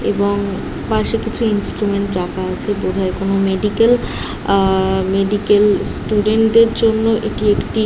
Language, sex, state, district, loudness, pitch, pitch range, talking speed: Bengali, female, West Bengal, Jhargram, -16 LUFS, 205 Hz, 195-220 Hz, 135 wpm